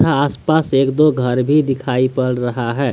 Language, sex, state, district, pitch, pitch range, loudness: Hindi, male, Jharkhand, Deoghar, 135 Hz, 125-145 Hz, -16 LUFS